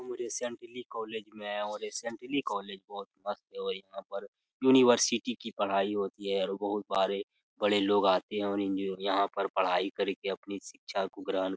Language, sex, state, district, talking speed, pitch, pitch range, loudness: Hindi, male, Bihar, Jamui, 195 wpm, 105 Hz, 100-120 Hz, -31 LUFS